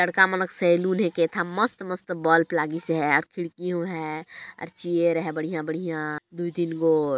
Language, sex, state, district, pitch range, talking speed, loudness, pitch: Chhattisgarhi, male, Chhattisgarh, Jashpur, 160-180 Hz, 165 wpm, -25 LUFS, 170 Hz